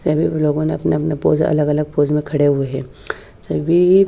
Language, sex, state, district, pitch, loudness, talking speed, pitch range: Hindi, female, Haryana, Charkhi Dadri, 150 Hz, -17 LUFS, 220 wpm, 145-155 Hz